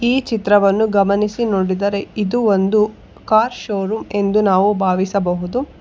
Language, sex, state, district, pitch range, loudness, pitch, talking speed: Kannada, female, Karnataka, Bangalore, 195-220 Hz, -17 LUFS, 205 Hz, 115 wpm